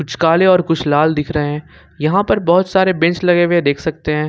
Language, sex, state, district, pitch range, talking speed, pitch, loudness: Hindi, male, Jharkhand, Ranchi, 150-175 Hz, 250 wpm, 165 Hz, -15 LUFS